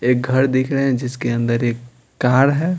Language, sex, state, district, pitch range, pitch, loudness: Hindi, male, Bihar, Patna, 120-135 Hz, 125 Hz, -18 LUFS